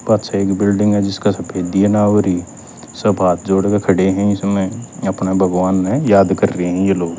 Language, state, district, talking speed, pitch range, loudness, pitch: Haryanvi, Haryana, Rohtak, 210 wpm, 95-100 Hz, -16 LUFS, 95 Hz